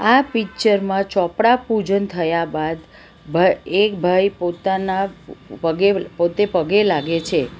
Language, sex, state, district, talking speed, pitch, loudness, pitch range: Gujarati, female, Gujarat, Valsad, 120 wpm, 190 Hz, -19 LUFS, 170-205 Hz